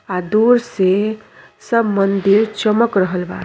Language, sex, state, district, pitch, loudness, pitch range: Bhojpuri, female, Uttar Pradesh, Deoria, 210 Hz, -16 LUFS, 190-220 Hz